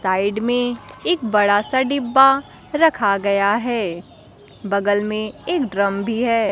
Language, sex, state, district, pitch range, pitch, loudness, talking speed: Hindi, female, Bihar, Kaimur, 200-260 Hz, 215 Hz, -19 LUFS, 140 wpm